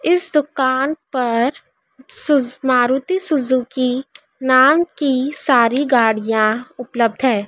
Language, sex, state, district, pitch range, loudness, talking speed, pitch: Hindi, female, Madhya Pradesh, Dhar, 245-290 Hz, -17 LUFS, 95 wpm, 260 Hz